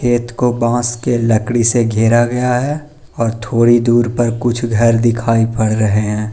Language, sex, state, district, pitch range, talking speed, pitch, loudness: Hindi, male, Arunachal Pradesh, Lower Dibang Valley, 115-120 Hz, 180 wpm, 120 Hz, -14 LUFS